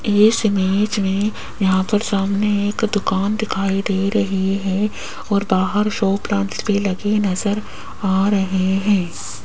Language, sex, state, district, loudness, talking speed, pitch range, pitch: Hindi, female, Rajasthan, Jaipur, -19 LUFS, 140 wpm, 190-210 Hz, 200 Hz